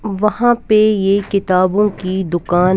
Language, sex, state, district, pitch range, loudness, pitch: Hindi, female, Punjab, Kapurthala, 185-210 Hz, -15 LUFS, 200 Hz